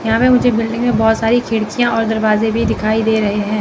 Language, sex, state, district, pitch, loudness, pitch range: Hindi, female, Chandigarh, Chandigarh, 225 Hz, -15 LUFS, 220-235 Hz